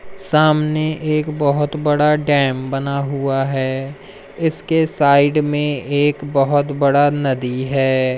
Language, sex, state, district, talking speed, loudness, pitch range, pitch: Hindi, male, Madhya Pradesh, Umaria, 115 wpm, -17 LUFS, 135-150 Hz, 145 Hz